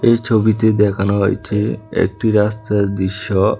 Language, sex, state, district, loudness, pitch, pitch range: Bengali, male, Tripura, West Tripura, -16 LUFS, 105 Hz, 100-110 Hz